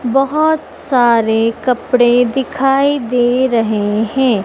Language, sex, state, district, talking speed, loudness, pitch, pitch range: Hindi, female, Madhya Pradesh, Dhar, 95 wpm, -14 LUFS, 245 Hz, 230-270 Hz